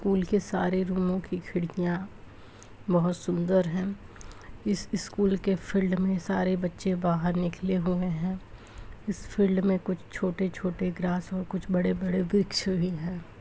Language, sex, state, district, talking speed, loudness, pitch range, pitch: Hindi, male, Uttar Pradesh, Etah, 150 wpm, -28 LUFS, 175-190 Hz, 185 Hz